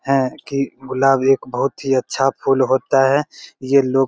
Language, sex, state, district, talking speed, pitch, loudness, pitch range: Hindi, male, Bihar, Begusarai, 190 wpm, 135 Hz, -18 LUFS, 130-135 Hz